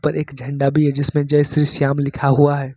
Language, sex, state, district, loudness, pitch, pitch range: Hindi, male, Jharkhand, Ranchi, -17 LUFS, 145 Hz, 140-150 Hz